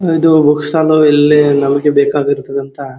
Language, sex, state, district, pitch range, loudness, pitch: Kannada, male, Karnataka, Dharwad, 140-155 Hz, -11 LUFS, 145 Hz